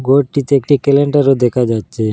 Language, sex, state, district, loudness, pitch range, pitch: Bengali, male, Assam, Hailakandi, -13 LUFS, 125-140 Hz, 135 Hz